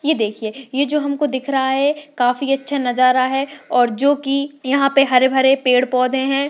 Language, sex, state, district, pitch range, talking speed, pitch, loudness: Hindi, female, Bihar, Jamui, 255-280 Hz, 210 wpm, 270 Hz, -17 LUFS